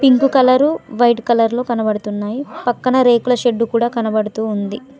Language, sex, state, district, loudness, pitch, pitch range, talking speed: Telugu, female, Telangana, Mahabubabad, -16 LUFS, 240 Hz, 220-255 Hz, 145 wpm